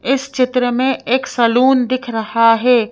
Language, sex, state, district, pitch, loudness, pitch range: Hindi, female, Madhya Pradesh, Bhopal, 250 Hz, -15 LUFS, 235-260 Hz